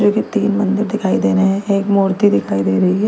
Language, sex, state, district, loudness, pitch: Hindi, female, Delhi, New Delhi, -15 LUFS, 195 Hz